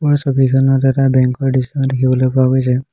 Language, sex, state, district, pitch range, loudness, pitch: Assamese, male, Assam, Hailakandi, 130-135 Hz, -14 LUFS, 130 Hz